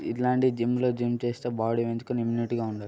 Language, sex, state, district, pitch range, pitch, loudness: Telugu, male, Andhra Pradesh, Srikakulam, 115-125 Hz, 120 Hz, -27 LUFS